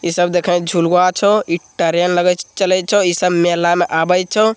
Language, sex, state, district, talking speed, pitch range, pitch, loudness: Hindi, male, Bihar, Begusarai, 225 wpm, 175-185 Hz, 180 Hz, -15 LUFS